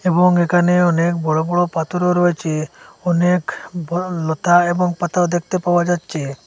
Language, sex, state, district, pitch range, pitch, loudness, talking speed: Bengali, male, Assam, Hailakandi, 165-180 Hz, 175 Hz, -17 LUFS, 140 wpm